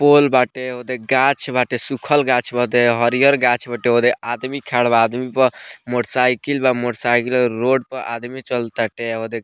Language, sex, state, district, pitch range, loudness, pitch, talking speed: Bhojpuri, male, Bihar, Muzaffarpur, 120-130 Hz, -18 LUFS, 125 Hz, 185 wpm